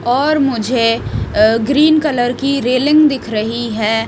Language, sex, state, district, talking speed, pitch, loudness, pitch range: Hindi, female, Odisha, Malkangiri, 145 wpm, 245 Hz, -14 LUFS, 225-280 Hz